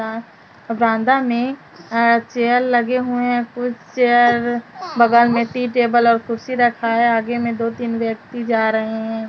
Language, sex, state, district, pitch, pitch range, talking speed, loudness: Hindi, female, Chhattisgarh, Raipur, 235 Hz, 230-245 Hz, 170 wpm, -17 LUFS